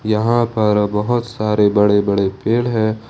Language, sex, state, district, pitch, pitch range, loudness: Hindi, male, Jharkhand, Ranchi, 110 Hz, 105-115 Hz, -16 LUFS